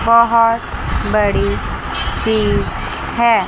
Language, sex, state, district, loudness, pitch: Hindi, female, Chandigarh, Chandigarh, -16 LUFS, 215 Hz